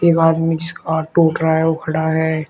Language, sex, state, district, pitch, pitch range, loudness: Hindi, male, Uttar Pradesh, Shamli, 160 Hz, 160-165 Hz, -17 LUFS